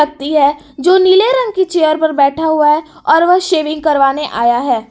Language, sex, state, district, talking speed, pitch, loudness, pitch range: Hindi, female, Jharkhand, Palamu, 205 wpm, 310 Hz, -12 LUFS, 285-350 Hz